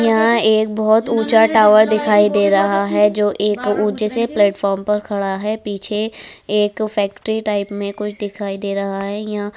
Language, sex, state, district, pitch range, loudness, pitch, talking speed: Hindi, female, Uttar Pradesh, Budaun, 200-215 Hz, -16 LUFS, 210 Hz, 180 wpm